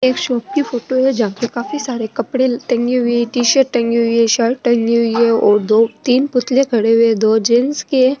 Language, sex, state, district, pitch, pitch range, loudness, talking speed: Rajasthani, female, Rajasthan, Nagaur, 240 Hz, 230-260 Hz, -15 LUFS, 235 wpm